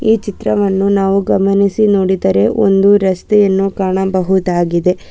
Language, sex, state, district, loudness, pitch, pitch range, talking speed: Kannada, female, Karnataka, Bangalore, -13 LUFS, 195 Hz, 190-200 Hz, 95 wpm